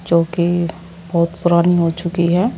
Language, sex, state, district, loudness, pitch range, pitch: Hindi, female, Uttar Pradesh, Saharanpur, -17 LUFS, 170-175 Hz, 170 Hz